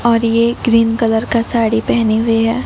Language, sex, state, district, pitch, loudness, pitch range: Hindi, female, Odisha, Nuapada, 230 Hz, -14 LUFS, 225-230 Hz